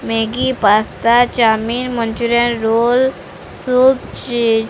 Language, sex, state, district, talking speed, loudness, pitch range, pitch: Odia, female, Odisha, Sambalpur, 100 wpm, -15 LUFS, 225-250 Hz, 235 Hz